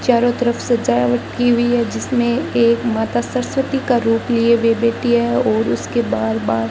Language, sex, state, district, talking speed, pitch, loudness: Hindi, female, Rajasthan, Bikaner, 185 wpm, 235 Hz, -17 LUFS